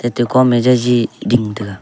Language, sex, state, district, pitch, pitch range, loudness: Wancho, male, Arunachal Pradesh, Longding, 120 Hz, 115-125 Hz, -14 LUFS